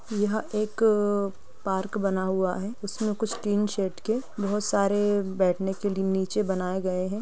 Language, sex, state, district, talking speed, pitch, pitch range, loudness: Hindi, female, Bihar, East Champaran, 165 wpm, 200 Hz, 190-210 Hz, -27 LUFS